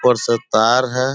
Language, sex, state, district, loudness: Hindi, male, Bihar, Purnia, -16 LUFS